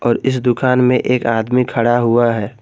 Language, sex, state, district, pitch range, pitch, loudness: Hindi, male, Jharkhand, Garhwa, 115-125 Hz, 120 Hz, -15 LUFS